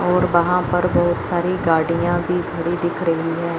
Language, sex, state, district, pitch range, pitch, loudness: Hindi, female, Chandigarh, Chandigarh, 170-180 Hz, 175 Hz, -19 LUFS